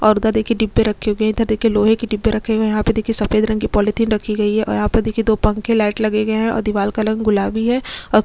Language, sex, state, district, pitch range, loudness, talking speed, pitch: Hindi, female, Chhattisgarh, Sukma, 215-225 Hz, -17 LUFS, 325 wpm, 220 Hz